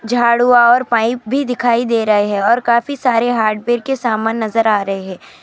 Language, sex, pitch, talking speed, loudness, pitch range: Urdu, female, 235 Hz, 165 wpm, -14 LUFS, 220-245 Hz